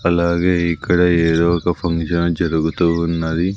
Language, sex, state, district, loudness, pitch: Telugu, male, Andhra Pradesh, Sri Satya Sai, -17 LUFS, 85 Hz